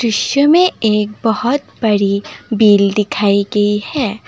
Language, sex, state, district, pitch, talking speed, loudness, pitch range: Hindi, female, Assam, Kamrup Metropolitan, 210 Hz, 125 wpm, -14 LUFS, 205-240 Hz